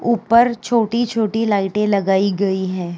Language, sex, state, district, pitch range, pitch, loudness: Hindi, female, Uttar Pradesh, Jyotiba Phule Nagar, 195-230 Hz, 210 Hz, -17 LUFS